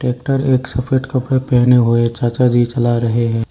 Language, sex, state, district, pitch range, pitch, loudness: Hindi, male, Arunachal Pradesh, Lower Dibang Valley, 120-130 Hz, 125 Hz, -15 LUFS